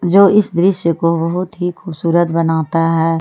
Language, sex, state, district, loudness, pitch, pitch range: Hindi, female, Jharkhand, Ranchi, -15 LUFS, 170 Hz, 165-180 Hz